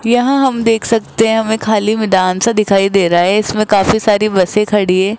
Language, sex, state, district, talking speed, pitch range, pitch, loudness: Hindi, female, Rajasthan, Jaipur, 220 wpm, 195-225 Hz, 215 Hz, -12 LUFS